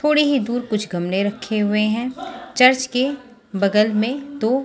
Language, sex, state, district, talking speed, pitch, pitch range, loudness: Hindi, female, Chhattisgarh, Raipur, 165 wpm, 240 Hz, 210-265 Hz, -19 LUFS